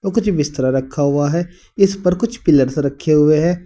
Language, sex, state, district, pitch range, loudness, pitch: Hindi, male, Uttar Pradesh, Saharanpur, 145-180 Hz, -16 LUFS, 155 Hz